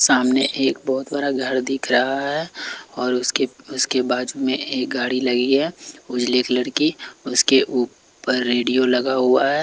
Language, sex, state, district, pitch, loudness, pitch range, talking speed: Hindi, male, Chhattisgarh, Raipur, 130 Hz, -20 LUFS, 125-135 Hz, 160 wpm